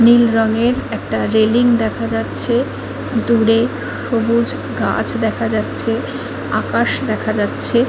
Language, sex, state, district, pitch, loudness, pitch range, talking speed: Bengali, female, West Bengal, Kolkata, 230 Hz, -17 LUFS, 220-240 Hz, 115 wpm